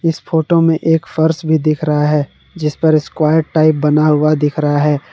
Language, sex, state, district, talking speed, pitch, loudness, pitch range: Hindi, male, Jharkhand, Palamu, 210 wpm, 155 Hz, -14 LUFS, 150-160 Hz